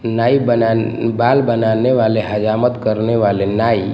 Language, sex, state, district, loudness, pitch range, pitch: Hindi, male, Gujarat, Gandhinagar, -15 LUFS, 110-120 Hz, 115 Hz